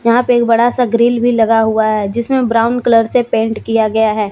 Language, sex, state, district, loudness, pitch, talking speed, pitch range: Hindi, female, Jharkhand, Deoghar, -13 LUFS, 230 Hz, 250 wpm, 220-240 Hz